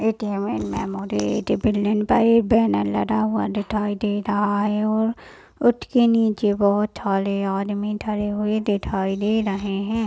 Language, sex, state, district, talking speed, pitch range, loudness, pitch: Hindi, male, Maharashtra, Nagpur, 130 wpm, 195-215 Hz, -22 LUFS, 205 Hz